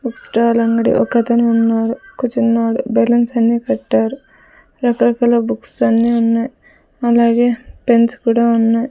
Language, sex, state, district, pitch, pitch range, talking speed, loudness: Telugu, female, Andhra Pradesh, Sri Satya Sai, 235 Hz, 230-240 Hz, 115 wpm, -15 LUFS